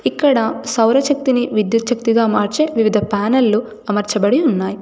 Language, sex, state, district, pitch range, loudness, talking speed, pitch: Telugu, female, Telangana, Komaram Bheem, 210-255 Hz, -16 LUFS, 100 wpm, 225 Hz